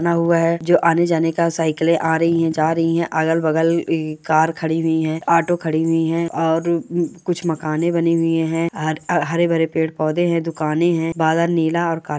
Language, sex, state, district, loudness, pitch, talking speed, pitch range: Angika, female, Bihar, Madhepura, -18 LUFS, 165 Hz, 190 wpm, 160-170 Hz